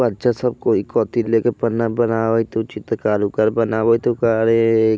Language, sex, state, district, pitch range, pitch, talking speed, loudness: Bajjika, male, Bihar, Vaishali, 110-120 Hz, 115 Hz, 170 wpm, -18 LUFS